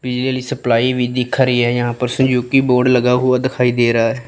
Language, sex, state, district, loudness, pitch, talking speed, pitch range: Hindi, female, Chandigarh, Chandigarh, -15 LUFS, 125 Hz, 185 wpm, 120-130 Hz